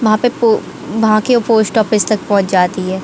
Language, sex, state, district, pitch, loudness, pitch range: Hindi, female, Chhattisgarh, Bilaspur, 215 Hz, -14 LUFS, 200-225 Hz